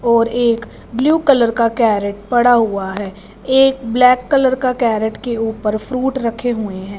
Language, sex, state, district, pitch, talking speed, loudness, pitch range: Hindi, female, Punjab, Fazilka, 235 Hz, 170 wpm, -15 LUFS, 215-250 Hz